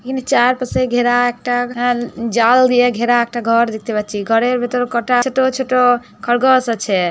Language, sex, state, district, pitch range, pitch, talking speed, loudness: Bengali, female, West Bengal, Jhargram, 235-250 Hz, 245 Hz, 160 wpm, -15 LUFS